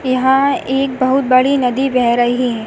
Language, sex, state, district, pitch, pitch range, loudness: Hindi, female, Uttar Pradesh, Hamirpur, 255 Hz, 250-270 Hz, -14 LUFS